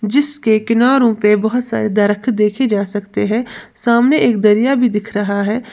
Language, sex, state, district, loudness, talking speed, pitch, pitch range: Hindi, female, Uttar Pradesh, Lalitpur, -15 LUFS, 180 wpm, 225 Hz, 210-245 Hz